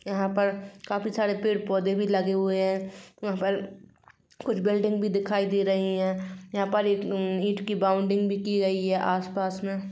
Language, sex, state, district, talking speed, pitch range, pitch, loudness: Hindi, female, Bihar, Sitamarhi, 185 wpm, 190-205 Hz, 195 Hz, -27 LUFS